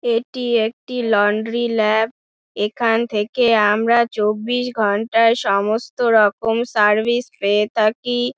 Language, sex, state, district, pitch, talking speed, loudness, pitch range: Bengali, female, West Bengal, Dakshin Dinajpur, 225 Hz, 100 wpm, -18 LUFS, 210-235 Hz